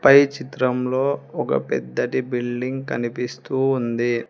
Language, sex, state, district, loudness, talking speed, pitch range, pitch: Telugu, female, Telangana, Hyderabad, -22 LUFS, 95 wpm, 120-135 Hz, 125 Hz